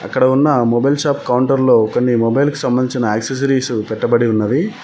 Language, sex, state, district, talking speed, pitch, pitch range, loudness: Telugu, male, Telangana, Mahabubabad, 160 wpm, 125 Hz, 115-135 Hz, -15 LUFS